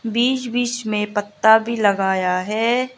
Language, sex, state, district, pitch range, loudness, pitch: Hindi, female, Arunachal Pradesh, Lower Dibang Valley, 205-240 Hz, -19 LUFS, 220 Hz